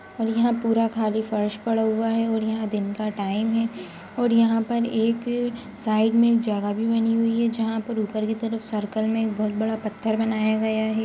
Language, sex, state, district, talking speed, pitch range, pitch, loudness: Hindi, female, Uttar Pradesh, Jyotiba Phule Nagar, 210 wpm, 215-230 Hz, 225 Hz, -24 LUFS